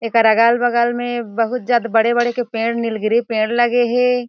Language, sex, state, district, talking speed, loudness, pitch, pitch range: Chhattisgarhi, female, Chhattisgarh, Jashpur, 195 wpm, -17 LUFS, 235 Hz, 230-240 Hz